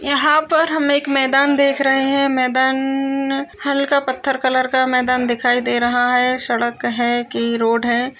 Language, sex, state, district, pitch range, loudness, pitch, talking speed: Hindi, female, Uttar Pradesh, Hamirpur, 245-275 Hz, -17 LUFS, 260 Hz, 175 wpm